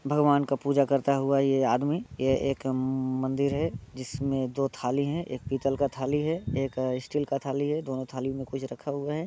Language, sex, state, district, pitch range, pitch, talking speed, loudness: Hindi, male, Bihar, Muzaffarpur, 130-140 Hz, 135 Hz, 205 wpm, -28 LUFS